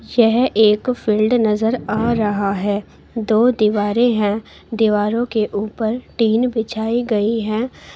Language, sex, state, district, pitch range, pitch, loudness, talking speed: Hindi, female, Uttar Pradesh, Shamli, 210-235 Hz, 220 Hz, -18 LUFS, 130 wpm